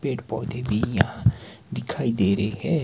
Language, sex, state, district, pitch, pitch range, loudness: Hindi, male, Himachal Pradesh, Shimla, 115 Hz, 110-125 Hz, -25 LUFS